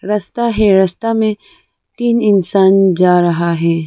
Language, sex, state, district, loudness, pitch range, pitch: Hindi, female, Arunachal Pradesh, Lower Dibang Valley, -13 LUFS, 180-215 Hz, 195 Hz